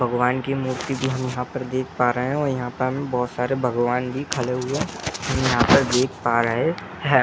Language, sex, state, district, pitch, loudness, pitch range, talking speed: Hindi, male, Bihar, Muzaffarpur, 130 Hz, -22 LUFS, 125-135 Hz, 230 wpm